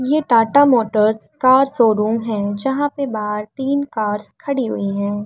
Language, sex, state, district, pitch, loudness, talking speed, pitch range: Hindi, female, Uttar Pradesh, Muzaffarnagar, 230 Hz, -17 LUFS, 160 wpm, 210-275 Hz